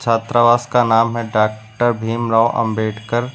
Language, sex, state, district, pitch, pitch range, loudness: Hindi, male, Uttar Pradesh, Lucknow, 115 Hz, 110-120 Hz, -17 LUFS